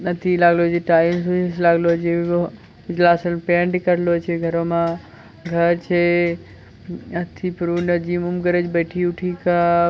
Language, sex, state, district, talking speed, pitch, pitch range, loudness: Maithili, male, Bihar, Bhagalpur, 170 wpm, 175 Hz, 170-175 Hz, -19 LUFS